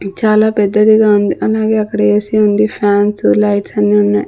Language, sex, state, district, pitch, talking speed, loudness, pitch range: Telugu, female, Andhra Pradesh, Sri Satya Sai, 210 Hz, 155 wpm, -12 LUFS, 205-215 Hz